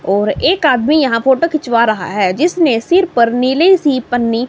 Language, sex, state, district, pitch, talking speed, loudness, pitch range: Hindi, female, Himachal Pradesh, Shimla, 255 Hz, 185 wpm, -13 LUFS, 230-315 Hz